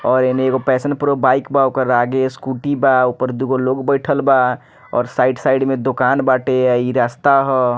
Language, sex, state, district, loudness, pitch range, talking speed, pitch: Bhojpuri, male, Bihar, Muzaffarpur, -16 LUFS, 130-135 Hz, 210 wpm, 130 Hz